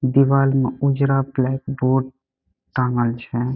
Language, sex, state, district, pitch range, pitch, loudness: Maithili, male, Bihar, Saharsa, 130-135 Hz, 130 Hz, -20 LUFS